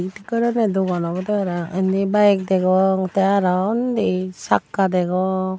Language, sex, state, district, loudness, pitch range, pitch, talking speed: Chakma, female, Tripura, Dhalai, -19 LUFS, 185-200 Hz, 190 Hz, 140 wpm